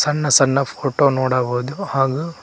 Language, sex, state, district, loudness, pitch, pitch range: Kannada, male, Karnataka, Koppal, -18 LUFS, 140 Hz, 130-150 Hz